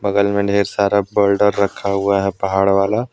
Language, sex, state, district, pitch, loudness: Hindi, male, Jharkhand, Deoghar, 100 Hz, -17 LUFS